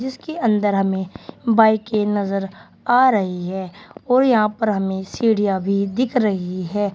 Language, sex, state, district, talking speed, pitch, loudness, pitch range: Hindi, female, Uttar Pradesh, Shamli, 145 wpm, 205 Hz, -19 LUFS, 195-230 Hz